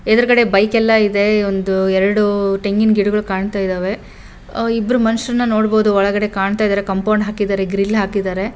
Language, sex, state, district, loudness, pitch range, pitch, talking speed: Kannada, female, Karnataka, Bellary, -16 LUFS, 195-220 Hz, 205 Hz, 125 wpm